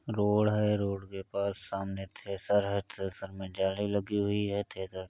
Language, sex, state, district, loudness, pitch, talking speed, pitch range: Hindi, male, Uttar Pradesh, Etah, -32 LUFS, 100 Hz, 190 wpm, 95-105 Hz